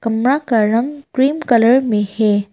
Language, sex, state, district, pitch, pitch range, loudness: Hindi, female, Arunachal Pradesh, Papum Pare, 235 Hz, 220-265 Hz, -15 LUFS